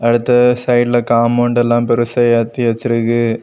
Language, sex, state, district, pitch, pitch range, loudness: Tamil, male, Tamil Nadu, Kanyakumari, 120 Hz, 115-120 Hz, -14 LUFS